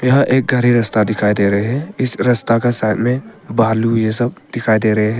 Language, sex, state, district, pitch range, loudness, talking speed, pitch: Hindi, male, Arunachal Pradesh, Papum Pare, 110-125 Hz, -16 LUFS, 230 wpm, 115 Hz